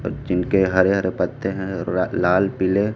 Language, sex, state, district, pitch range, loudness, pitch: Hindi, male, Chhattisgarh, Raipur, 90-95 Hz, -20 LUFS, 95 Hz